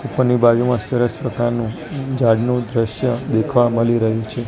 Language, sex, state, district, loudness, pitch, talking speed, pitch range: Gujarati, male, Gujarat, Gandhinagar, -18 LUFS, 120 Hz, 135 wpm, 115-125 Hz